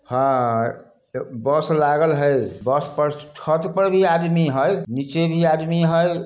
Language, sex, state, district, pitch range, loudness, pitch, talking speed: Hindi, male, Bihar, Samastipur, 140-165 Hz, -20 LUFS, 155 Hz, 135 wpm